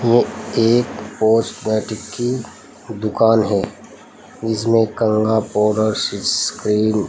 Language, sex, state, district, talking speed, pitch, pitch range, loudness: Hindi, male, Uttar Pradesh, Saharanpur, 60 wpm, 110 Hz, 110-115 Hz, -18 LUFS